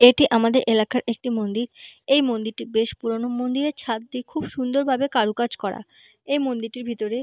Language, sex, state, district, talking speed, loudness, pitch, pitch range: Bengali, female, West Bengal, Malda, 160 wpm, -23 LUFS, 245 Hz, 230-260 Hz